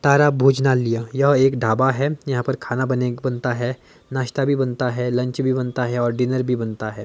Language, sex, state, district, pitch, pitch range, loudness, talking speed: Hindi, male, Himachal Pradesh, Shimla, 130 Hz, 125-135 Hz, -20 LUFS, 215 wpm